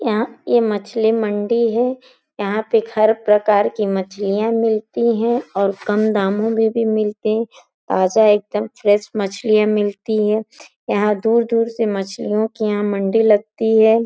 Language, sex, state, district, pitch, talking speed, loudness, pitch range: Hindi, female, Uttar Pradesh, Gorakhpur, 215 Hz, 145 wpm, -18 LUFS, 210-225 Hz